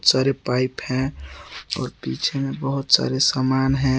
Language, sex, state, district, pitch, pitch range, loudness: Hindi, male, Jharkhand, Garhwa, 130 Hz, 130-135 Hz, -21 LUFS